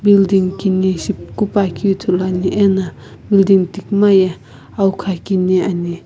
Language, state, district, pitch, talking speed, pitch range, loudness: Sumi, Nagaland, Kohima, 190 Hz, 120 wpm, 180-200 Hz, -15 LUFS